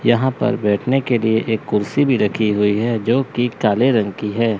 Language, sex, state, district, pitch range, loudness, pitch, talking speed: Hindi, male, Chandigarh, Chandigarh, 105-125 Hz, -18 LUFS, 115 Hz, 210 wpm